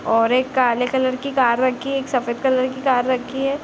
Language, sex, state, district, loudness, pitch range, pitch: Hindi, female, Bihar, Gopalganj, -19 LUFS, 250-265 Hz, 255 Hz